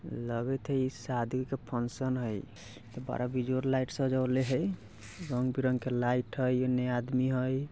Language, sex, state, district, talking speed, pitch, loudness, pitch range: Bajjika, male, Bihar, Vaishali, 140 wpm, 125 Hz, -32 LUFS, 120-130 Hz